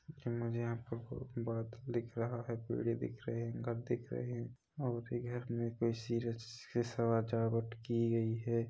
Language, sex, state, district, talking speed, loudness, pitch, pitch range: Hindi, male, Chhattisgarh, Rajnandgaon, 170 wpm, -39 LUFS, 115 Hz, 115-120 Hz